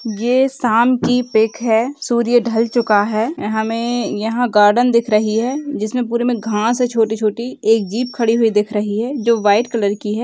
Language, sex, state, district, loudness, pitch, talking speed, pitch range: Hindi, female, Rajasthan, Churu, -16 LUFS, 230 Hz, 200 wpm, 215-245 Hz